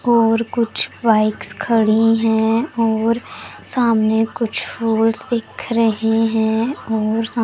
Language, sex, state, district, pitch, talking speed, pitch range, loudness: Hindi, female, Punjab, Pathankot, 225 Hz, 115 wpm, 220-230 Hz, -18 LUFS